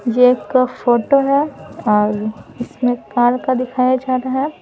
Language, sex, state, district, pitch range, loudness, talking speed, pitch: Hindi, female, Bihar, Patna, 240-260 Hz, -17 LUFS, 155 wpm, 250 Hz